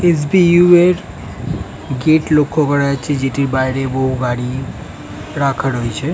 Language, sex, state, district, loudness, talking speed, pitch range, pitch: Bengali, male, West Bengal, North 24 Parganas, -15 LUFS, 115 wpm, 130-155 Hz, 140 Hz